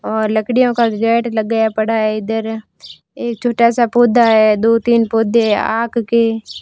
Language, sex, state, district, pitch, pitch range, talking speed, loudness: Hindi, female, Rajasthan, Barmer, 225 Hz, 220-235 Hz, 170 wpm, -15 LUFS